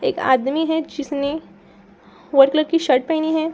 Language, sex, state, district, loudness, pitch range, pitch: Hindi, female, Bihar, Saran, -19 LUFS, 280-320 Hz, 310 Hz